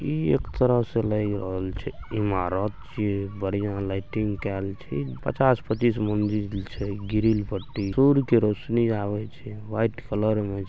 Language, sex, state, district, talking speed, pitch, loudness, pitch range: Maithili, male, Bihar, Saharsa, 145 wpm, 105 Hz, -26 LUFS, 100-115 Hz